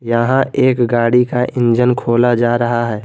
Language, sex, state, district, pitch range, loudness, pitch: Hindi, male, Jharkhand, Garhwa, 120-125 Hz, -14 LUFS, 120 Hz